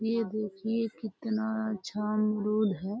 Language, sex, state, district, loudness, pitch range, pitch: Hindi, female, Uttar Pradesh, Deoria, -31 LUFS, 210-220 Hz, 215 Hz